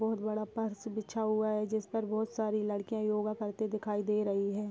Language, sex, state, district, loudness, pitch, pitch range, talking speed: Hindi, female, Bihar, Muzaffarpur, -34 LUFS, 215 Hz, 210-220 Hz, 205 wpm